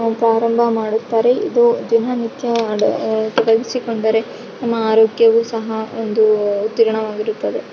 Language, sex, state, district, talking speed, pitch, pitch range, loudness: Kannada, female, Karnataka, Raichur, 85 wpm, 225 Hz, 220-235 Hz, -17 LUFS